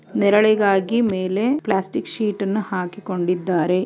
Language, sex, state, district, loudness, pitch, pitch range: Kannada, female, Karnataka, Belgaum, -20 LUFS, 200 Hz, 185-215 Hz